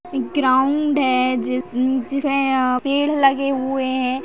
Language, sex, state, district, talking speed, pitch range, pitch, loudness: Hindi, female, Maharashtra, Sindhudurg, 140 wpm, 255-275 Hz, 265 Hz, -19 LUFS